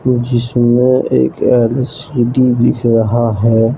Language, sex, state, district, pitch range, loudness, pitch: Hindi, male, Jharkhand, Deoghar, 115-125 Hz, -13 LUFS, 120 Hz